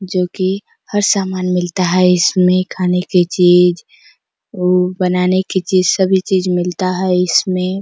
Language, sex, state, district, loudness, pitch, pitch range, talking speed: Hindi, female, Chhattisgarh, Bastar, -14 LUFS, 185 Hz, 180-190 Hz, 155 wpm